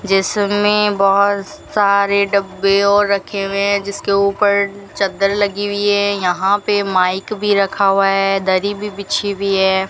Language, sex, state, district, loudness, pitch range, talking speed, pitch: Hindi, female, Rajasthan, Bikaner, -16 LUFS, 195-205 Hz, 170 wpm, 200 Hz